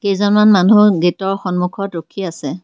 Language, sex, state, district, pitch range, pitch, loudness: Assamese, female, Assam, Kamrup Metropolitan, 180-205 Hz, 195 Hz, -14 LUFS